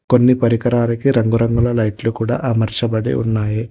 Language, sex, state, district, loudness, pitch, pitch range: Telugu, male, Telangana, Hyderabad, -17 LUFS, 115 Hz, 110-120 Hz